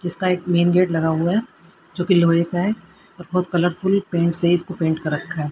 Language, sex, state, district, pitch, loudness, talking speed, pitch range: Hindi, female, Haryana, Rohtak, 175 Hz, -19 LUFS, 240 wpm, 170-185 Hz